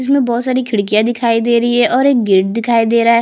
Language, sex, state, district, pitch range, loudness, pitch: Hindi, female, Chhattisgarh, Jashpur, 230-245 Hz, -13 LUFS, 235 Hz